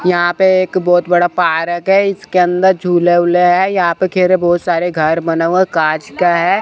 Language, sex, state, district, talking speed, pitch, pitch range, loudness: Hindi, male, Chandigarh, Chandigarh, 210 wpm, 175 Hz, 175-185 Hz, -13 LUFS